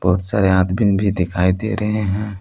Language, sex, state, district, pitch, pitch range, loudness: Hindi, male, Jharkhand, Palamu, 100 Hz, 95-105 Hz, -18 LUFS